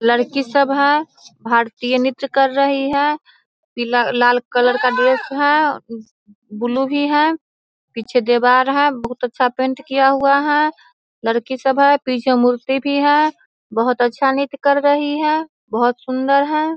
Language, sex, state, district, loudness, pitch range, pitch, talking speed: Hindi, female, Bihar, Sitamarhi, -16 LUFS, 245-285 Hz, 270 Hz, 150 wpm